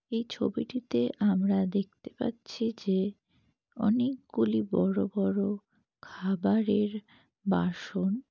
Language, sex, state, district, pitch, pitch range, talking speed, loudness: Bengali, female, West Bengal, Jalpaiguri, 205 Hz, 195-225 Hz, 80 wpm, -30 LUFS